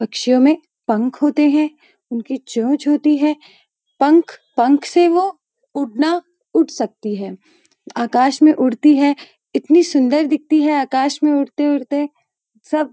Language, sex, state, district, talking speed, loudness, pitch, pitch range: Hindi, female, Uttarakhand, Uttarkashi, 145 wpm, -16 LUFS, 295 Hz, 260-310 Hz